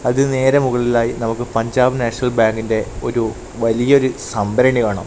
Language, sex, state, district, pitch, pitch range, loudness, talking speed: Malayalam, male, Kerala, Kasaragod, 120 Hz, 115-125 Hz, -17 LUFS, 140 wpm